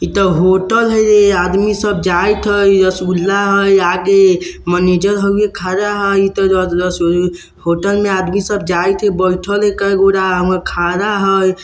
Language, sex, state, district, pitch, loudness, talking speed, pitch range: Bajjika, male, Bihar, Vaishali, 195 Hz, -13 LUFS, 145 wpm, 180-200 Hz